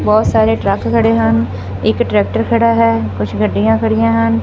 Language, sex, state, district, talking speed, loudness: Punjabi, female, Punjab, Fazilka, 175 wpm, -13 LUFS